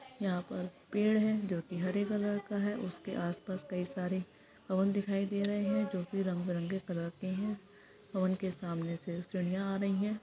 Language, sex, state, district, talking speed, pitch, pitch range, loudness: Hindi, female, Jharkhand, Sahebganj, 210 wpm, 190 Hz, 180-205 Hz, -35 LUFS